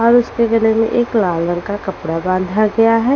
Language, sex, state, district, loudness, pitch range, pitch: Hindi, female, Haryana, Rohtak, -16 LUFS, 185-230 Hz, 220 Hz